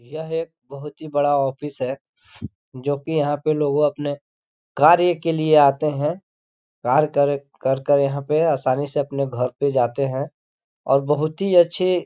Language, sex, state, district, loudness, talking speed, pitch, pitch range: Hindi, male, Chhattisgarh, Korba, -20 LUFS, 180 wpm, 145 Hz, 140-155 Hz